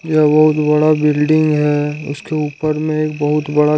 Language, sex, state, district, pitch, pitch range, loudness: Hindi, male, Jharkhand, Ranchi, 150 Hz, 150-155 Hz, -15 LUFS